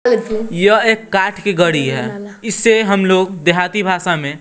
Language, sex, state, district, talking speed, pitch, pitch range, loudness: Hindi, female, Bihar, West Champaran, 165 wpm, 200 Hz, 180-220 Hz, -14 LUFS